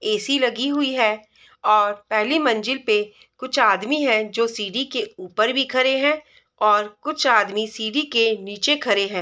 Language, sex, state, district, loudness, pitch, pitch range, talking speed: Hindi, female, Bihar, East Champaran, -20 LUFS, 240 Hz, 215-290 Hz, 170 wpm